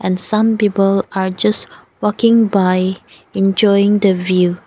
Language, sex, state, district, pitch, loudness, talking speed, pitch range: English, female, Nagaland, Dimapur, 195 Hz, -15 LUFS, 115 wpm, 185-210 Hz